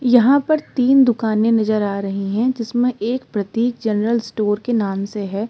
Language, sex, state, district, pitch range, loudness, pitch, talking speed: Hindi, female, Uttar Pradesh, Muzaffarnagar, 205-245 Hz, -18 LUFS, 225 Hz, 185 wpm